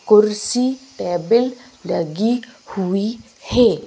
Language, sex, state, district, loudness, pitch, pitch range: Hindi, female, Madhya Pradesh, Bhopal, -19 LUFS, 230 Hz, 200-250 Hz